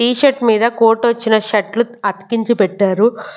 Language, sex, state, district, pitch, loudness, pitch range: Telugu, female, Andhra Pradesh, Annamaya, 230 Hz, -15 LUFS, 210-235 Hz